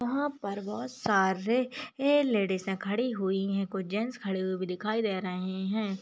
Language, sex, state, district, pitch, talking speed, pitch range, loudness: Hindi, female, Maharashtra, Aurangabad, 200 Hz, 180 wpm, 190-245 Hz, -30 LUFS